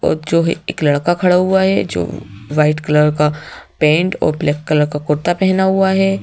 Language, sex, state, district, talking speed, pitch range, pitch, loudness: Hindi, female, Madhya Pradesh, Bhopal, 185 wpm, 150-180 Hz, 155 Hz, -15 LUFS